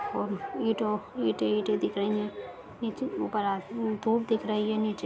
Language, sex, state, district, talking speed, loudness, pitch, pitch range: Hindi, female, Bihar, Jahanabad, 165 wpm, -30 LUFS, 215 Hz, 205-225 Hz